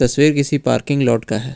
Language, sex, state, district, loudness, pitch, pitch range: Hindi, male, Jharkhand, Ranchi, -17 LUFS, 130 Hz, 120-145 Hz